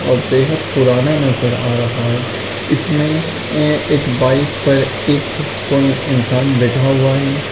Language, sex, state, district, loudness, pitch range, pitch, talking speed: Hindi, male, Chhattisgarh, Raigarh, -15 LUFS, 125-145 Hz, 135 Hz, 120 wpm